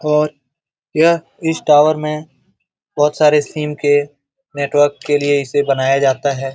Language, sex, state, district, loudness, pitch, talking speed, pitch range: Hindi, male, Bihar, Jamui, -15 LUFS, 145 Hz, 145 wpm, 140-150 Hz